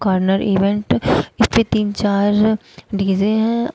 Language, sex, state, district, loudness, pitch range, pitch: Hindi, female, Uttar Pradesh, Shamli, -17 LUFS, 195-220 Hz, 205 Hz